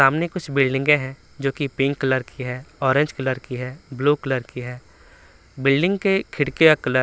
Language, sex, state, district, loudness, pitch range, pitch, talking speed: Hindi, male, Bihar, Patna, -21 LUFS, 130-150 Hz, 135 Hz, 205 wpm